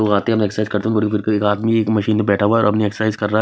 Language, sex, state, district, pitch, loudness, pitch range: Hindi, male, Maharashtra, Mumbai Suburban, 105 Hz, -17 LUFS, 105-110 Hz